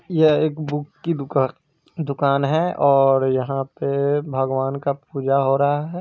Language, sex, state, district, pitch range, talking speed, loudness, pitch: Hindi, male, Bihar, East Champaran, 135-150 Hz, 170 wpm, -20 LUFS, 140 Hz